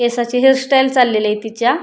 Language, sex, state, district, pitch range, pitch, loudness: Marathi, female, Maharashtra, Pune, 220-265 Hz, 245 Hz, -14 LUFS